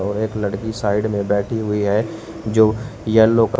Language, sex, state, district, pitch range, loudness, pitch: Hindi, male, Uttar Pradesh, Shamli, 105-110 Hz, -19 LUFS, 110 Hz